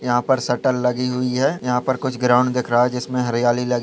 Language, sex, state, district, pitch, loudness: Hindi, male, Chhattisgarh, Raigarh, 125 Hz, -19 LUFS